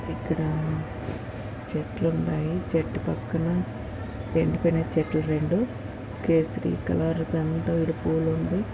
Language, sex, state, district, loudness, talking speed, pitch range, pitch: Telugu, female, Andhra Pradesh, Anantapur, -27 LUFS, 80 wpm, 105-160 Hz, 125 Hz